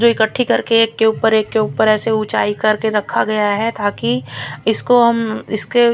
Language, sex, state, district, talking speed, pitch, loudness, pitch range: Hindi, female, Punjab, Fazilka, 210 wpm, 220 Hz, -15 LUFS, 210-225 Hz